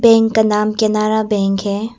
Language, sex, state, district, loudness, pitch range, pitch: Hindi, female, Arunachal Pradesh, Papum Pare, -15 LUFS, 210-220 Hz, 215 Hz